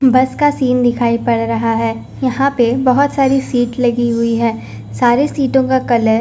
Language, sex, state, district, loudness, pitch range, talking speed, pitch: Hindi, female, Punjab, Fazilka, -14 LUFS, 230-265 Hz, 195 wpm, 245 Hz